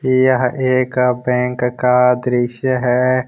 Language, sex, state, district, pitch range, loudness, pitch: Hindi, male, Jharkhand, Ranchi, 125-130 Hz, -16 LUFS, 125 Hz